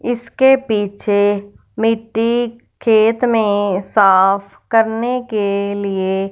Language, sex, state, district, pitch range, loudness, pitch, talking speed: Hindi, female, Punjab, Fazilka, 200-230 Hz, -16 LUFS, 215 Hz, 85 wpm